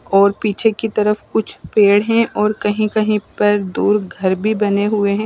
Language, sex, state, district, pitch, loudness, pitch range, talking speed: Hindi, female, Chandigarh, Chandigarh, 210 Hz, -16 LUFS, 200-215 Hz, 195 wpm